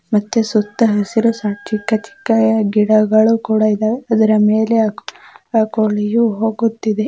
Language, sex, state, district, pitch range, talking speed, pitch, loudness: Kannada, female, Karnataka, Dakshina Kannada, 215-225 Hz, 110 wpm, 220 Hz, -15 LUFS